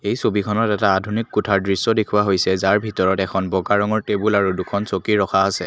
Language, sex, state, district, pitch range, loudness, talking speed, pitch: Assamese, male, Assam, Kamrup Metropolitan, 95-105 Hz, -19 LUFS, 200 wpm, 100 Hz